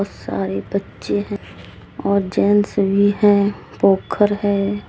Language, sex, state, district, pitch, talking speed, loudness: Hindi, female, Jharkhand, Deoghar, 195 Hz, 110 wpm, -18 LUFS